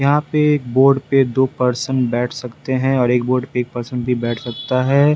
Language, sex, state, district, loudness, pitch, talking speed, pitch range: Hindi, male, Bihar, Patna, -17 LUFS, 130 Hz, 220 wpm, 125-135 Hz